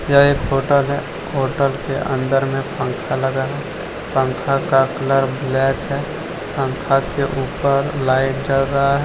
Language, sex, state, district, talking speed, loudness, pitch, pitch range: Hindi, male, Jharkhand, Deoghar, 155 wpm, -19 LUFS, 135 Hz, 135-140 Hz